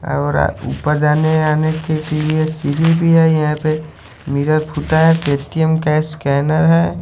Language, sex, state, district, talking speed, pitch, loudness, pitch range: Hindi, male, Haryana, Charkhi Dadri, 145 wpm, 155 Hz, -15 LUFS, 150-160 Hz